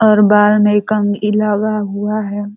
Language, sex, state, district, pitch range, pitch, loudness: Hindi, female, Uttar Pradesh, Ghazipur, 205-215 Hz, 210 Hz, -14 LUFS